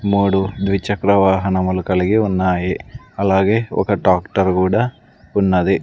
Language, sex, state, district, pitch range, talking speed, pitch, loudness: Telugu, male, Andhra Pradesh, Sri Satya Sai, 95-100 Hz, 105 wpm, 95 Hz, -17 LUFS